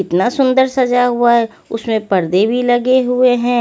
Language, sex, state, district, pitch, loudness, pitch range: Hindi, female, Haryana, Rohtak, 245 Hz, -14 LUFS, 225-250 Hz